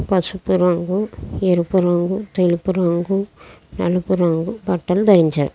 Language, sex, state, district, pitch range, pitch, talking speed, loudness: Telugu, female, Andhra Pradesh, Krishna, 175-190 Hz, 180 Hz, 110 wpm, -18 LUFS